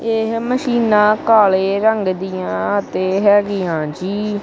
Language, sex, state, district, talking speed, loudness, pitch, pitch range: Punjabi, male, Punjab, Kapurthala, 110 wpm, -16 LUFS, 205 Hz, 190-220 Hz